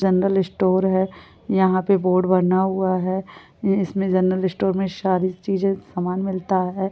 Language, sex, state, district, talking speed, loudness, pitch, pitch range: Hindi, female, Goa, North and South Goa, 155 wpm, -21 LUFS, 190 Hz, 185-190 Hz